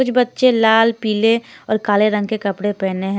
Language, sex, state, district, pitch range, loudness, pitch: Hindi, female, Himachal Pradesh, Shimla, 205-230 Hz, -17 LUFS, 215 Hz